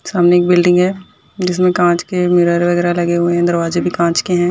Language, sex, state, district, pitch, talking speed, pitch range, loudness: Hindi, female, Bihar, Bhagalpur, 175 Hz, 225 wpm, 175-180 Hz, -14 LUFS